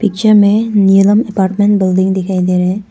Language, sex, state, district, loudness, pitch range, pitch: Hindi, female, Arunachal Pradesh, Papum Pare, -11 LUFS, 190-210 Hz, 200 Hz